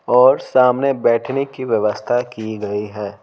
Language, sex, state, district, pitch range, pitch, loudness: Hindi, male, Bihar, Patna, 105-130 Hz, 120 Hz, -18 LUFS